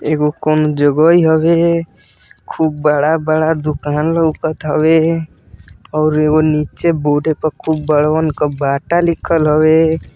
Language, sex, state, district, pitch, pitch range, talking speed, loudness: Bhojpuri, male, Uttar Pradesh, Deoria, 155 Hz, 150-160 Hz, 110 wpm, -14 LUFS